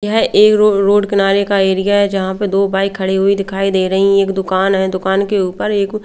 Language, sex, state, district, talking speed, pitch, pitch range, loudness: Hindi, female, Bihar, Katihar, 230 wpm, 195 Hz, 190-200 Hz, -14 LUFS